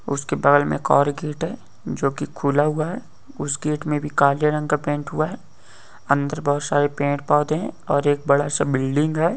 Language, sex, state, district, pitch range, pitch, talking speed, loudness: Hindi, male, Maharashtra, Nagpur, 145-150 Hz, 145 Hz, 205 wpm, -21 LUFS